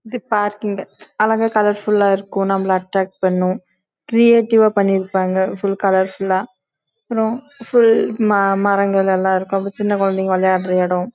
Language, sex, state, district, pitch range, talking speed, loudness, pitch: Tamil, female, Karnataka, Chamarajanagar, 190-215 Hz, 90 wpm, -17 LUFS, 195 Hz